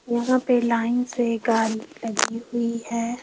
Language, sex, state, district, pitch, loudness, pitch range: Hindi, female, Rajasthan, Jaipur, 235 Hz, -23 LUFS, 230-240 Hz